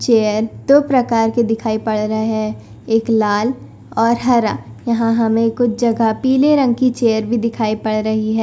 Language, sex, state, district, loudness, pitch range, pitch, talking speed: Hindi, female, Punjab, Kapurthala, -16 LUFS, 220-235 Hz, 225 Hz, 180 wpm